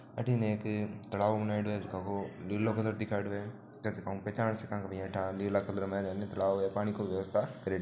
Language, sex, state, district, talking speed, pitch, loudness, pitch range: Marwari, male, Rajasthan, Churu, 175 wpm, 105 Hz, -35 LUFS, 95-105 Hz